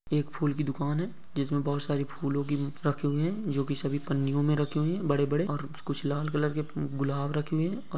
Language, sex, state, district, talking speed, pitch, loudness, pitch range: Hindi, male, Maharashtra, Aurangabad, 235 wpm, 145 Hz, -30 LUFS, 140-150 Hz